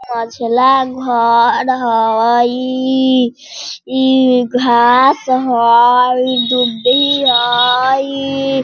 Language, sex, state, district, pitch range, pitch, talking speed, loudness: Hindi, female, Bihar, Sitamarhi, 240-265 Hz, 250 Hz, 55 wpm, -12 LUFS